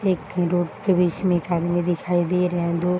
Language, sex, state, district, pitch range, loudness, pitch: Hindi, female, Uttar Pradesh, Varanasi, 175-180 Hz, -22 LUFS, 175 Hz